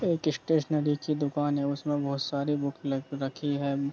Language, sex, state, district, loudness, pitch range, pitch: Hindi, male, Jharkhand, Jamtara, -29 LUFS, 140-150 Hz, 145 Hz